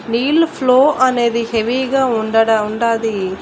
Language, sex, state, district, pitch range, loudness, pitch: Telugu, female, Andhra Pradesh, Annamaya, 225-260 Hz, -15 LUFS, 235 Hz